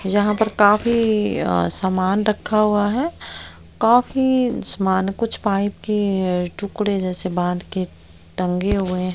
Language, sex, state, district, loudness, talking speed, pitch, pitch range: Hindi, female, Haryana, Rohtak, -20 LUFS, 130 wpm, 200 Hz, 185-215 Hz